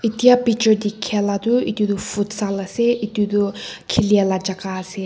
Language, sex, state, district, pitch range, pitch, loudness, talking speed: Nagamese, female, Nagaland, Kohima, 200-220 Hz, 205 Hz, -19 LUFS, 180 wpm